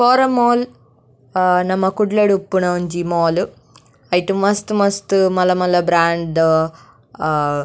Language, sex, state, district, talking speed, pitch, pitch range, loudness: Tulu, female, Karnataka, Dakshina Kannada, 125 wpm, 180 Hz, 165-200 Hz, -17 LUFS